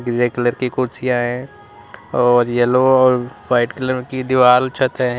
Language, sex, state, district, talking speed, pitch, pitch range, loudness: Hindi, male, Uttar Pradesh, Lalitpur, 160 wpm, 125 Hz, 120-130 Hz, -16 LUFS